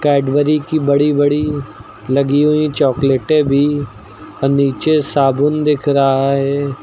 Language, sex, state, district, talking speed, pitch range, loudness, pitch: Hindi, male, Uttar Pradesh, Lucknow, 125 wpm, 135-150 Hz, -15 LUFS, 140 Hz